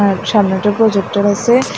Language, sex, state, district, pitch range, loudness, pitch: Bengali, female, Tripura, West Tripura, 200-225 Hz, -14 LUFS, 205 Hz